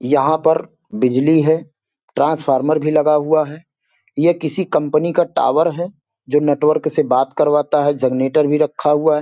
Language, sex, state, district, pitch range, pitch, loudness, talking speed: Hindi, male, Bihar, Sitamarhi, 145-160 Hz, 150 Hz, -16 LUFS, 170 wpm